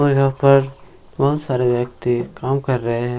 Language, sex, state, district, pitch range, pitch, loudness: Hindi, male, Bihar, Jamui, 125-140 Hz, 135 Hz, -18 LUFS